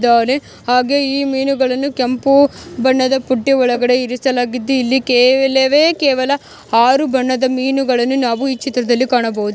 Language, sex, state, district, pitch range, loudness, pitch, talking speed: Kannada, female, Karnataka, Mysore, 250-270 Hz, -14 LUFS, 260 Hz, 120 wpm